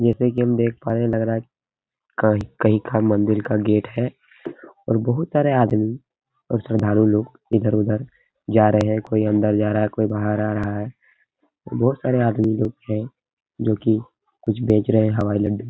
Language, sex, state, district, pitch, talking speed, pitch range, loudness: Hindi, male, Uttar Pradesh, Hamirpur, 110 Hz, 190 wpm, 105-120 Hz, -21 LUFS